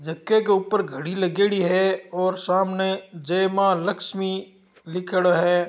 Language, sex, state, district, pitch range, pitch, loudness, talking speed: Marwari, male, Rajasthan, Nagaur, 180-195 Hz, 190 Hz, -22 LUFS, 135 wpm